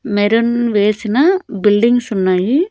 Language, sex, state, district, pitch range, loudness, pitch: Telugu, female, Andhra Pradesh, Annamaya, 205-245 Hz, -14 LUFS, 220 Hz